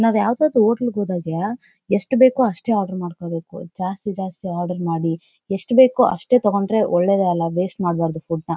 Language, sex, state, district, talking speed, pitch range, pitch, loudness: Kannada, female, Karnataka, Bellary, 160 wpm, 175-225 Hz, 190 Hz, -19 LUFS